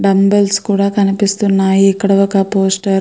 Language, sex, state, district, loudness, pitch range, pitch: Telugu, female, Andhra Pradesh, Krishna, -13 LUFS, 195-200 Hz, 195 Hz